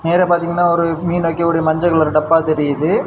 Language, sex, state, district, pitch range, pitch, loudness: Tamil, male, Tamil Nadu, Kanyakumari, 160-170 Hz, 165 Hz, -15 LUFS